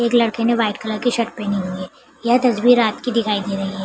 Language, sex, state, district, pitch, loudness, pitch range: Hindi, female, Bihar, Begusarai, 225 Hz, -19 LUFS, 200-235 Hz